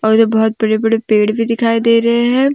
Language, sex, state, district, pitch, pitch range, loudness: Hindi, female, Jharkhand, Deoghar, 225 Hz, 220-230 Hz, -13 LUFS